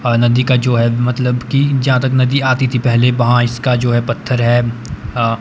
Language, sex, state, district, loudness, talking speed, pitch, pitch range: Hindi, male, Himachal Pradesh, Shimla, -14 LUFS, 235 wpm, 125 Hz, 120-125 Hz